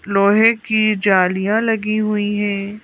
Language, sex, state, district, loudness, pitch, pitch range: Hindi, female, Madhya Pradesh, Bhopal, -16 LUFS, 210 Hz, 200-215 Hz